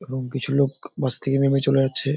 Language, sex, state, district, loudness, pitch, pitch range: Bengali, male, West Bengal, Jalpaiguri, -21 LUFS, 135 Hz, 130-140 Hz